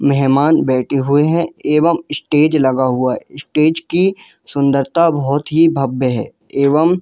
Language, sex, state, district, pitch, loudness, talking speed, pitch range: Hindi, male, Jharkhand, Jamtara, 145 Hz, -15 LUFS, 155 wpm, 135-160 Hz